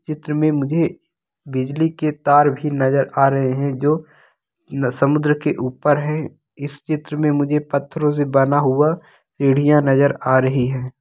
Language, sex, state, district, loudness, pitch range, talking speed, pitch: Angika, male, Bihar, Madhepura, -18 LUFS, 135-150 Hz, 160 wpm, 145 Hz